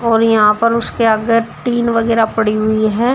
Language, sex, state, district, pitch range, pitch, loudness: Hindi, female, Uttar Pradesh, Shamli, 220-230 Hz, 230 Hz, -14 LUFS